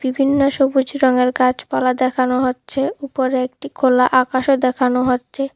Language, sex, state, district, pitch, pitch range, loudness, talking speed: Bengali, female, Tripura, West Tripura, 255 Hz, 255-275 Hz, -17 LUFS, 130 wpm